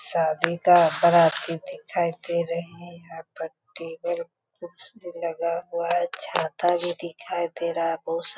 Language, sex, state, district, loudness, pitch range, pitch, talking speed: Hindi, female, Bihar, Sitamarhi, -24 LUFS, 165-175 Hz, 170 Hz, 170 wpm